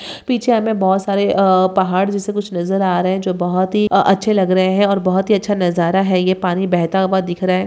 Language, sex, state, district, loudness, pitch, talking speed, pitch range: Hindi, female, Chhattisgarh, Bilaspur, -16 LUFS, 190 Hz, 260 wpm, 185-200 Hz